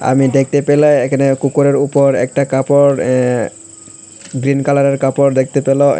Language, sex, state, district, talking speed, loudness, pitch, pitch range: Bengali, male, Tripura, Unakoti, 140 wpm, -13 LUFS, 135 Hz, 130-140 Hz